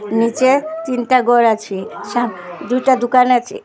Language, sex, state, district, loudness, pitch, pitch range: Bengali, female, Assam, Hailakandi, -16 LUFS, 245 Hz, 225-255 Hz